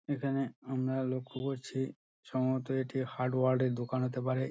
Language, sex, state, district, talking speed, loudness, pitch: Bengali, male, West Bengal, Dakshin Dinajpur, 145 wpm, -34 LUFS, 130 Hz